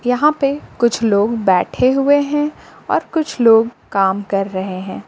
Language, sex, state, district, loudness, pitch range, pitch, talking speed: Hindi, female, Jharkhand, Palamu, -16 LUFS, 195-280 Hz, 235 Hz, 165 wpm